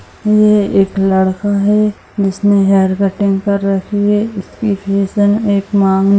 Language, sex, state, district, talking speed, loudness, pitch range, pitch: Hindi, female, Bihar, Saharsa, 125 wpm, -13 LUFS, 195-205 Hz, 200 Hz